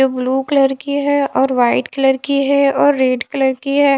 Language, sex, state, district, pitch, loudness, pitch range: Hindi, female, Haryana, Charkhi Dadri, 275 Hz, -15 LUFS, 265-280 Hz